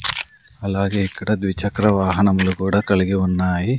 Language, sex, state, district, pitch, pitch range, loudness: Telugu, male, Andhra Pradesh, Sri Satya Sai, 95 Hz, 95-100 Hz, -19 LUFS